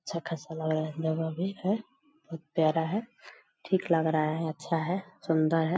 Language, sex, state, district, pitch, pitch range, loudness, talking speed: Hindi, female, Bihar, Purnia, 165 Hz, 160-185 Hz, -30 LUFS, 195 wpm